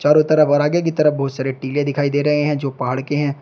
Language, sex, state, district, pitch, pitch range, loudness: Hindi, male, Uttar Pradesh, Shamli, 145 Hz, 140-150 Hz, -18 LUFS